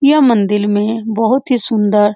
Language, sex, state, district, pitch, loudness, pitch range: Hindi, female, Bihar, Supaul, 220 Hz, -13 LUFS, 210-250 Hz